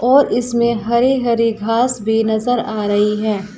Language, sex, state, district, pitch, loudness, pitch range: Hindi, female, Uttar Pradesh, Saharanpur, 230 Hz, -16 LUFS, 215-240 Hz